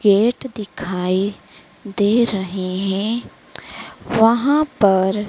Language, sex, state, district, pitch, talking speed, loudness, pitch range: Hindi, female, Madhya Pradesh, Dhar, 205 Hz, 80 wpm, -19 LUFS, 190-230 Hz